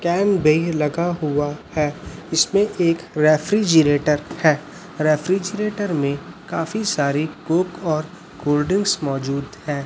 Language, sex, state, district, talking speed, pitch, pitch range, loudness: Hindi, male, Chhattisgarh, Raipur, 115 wpm, 160 Hz, 150-180 Hz, -20 LUFS